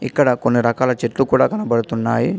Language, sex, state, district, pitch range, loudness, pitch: Telugu, male, Telangana, Adilabad, 115-130 Hz, -17 LUFS, 120 Hz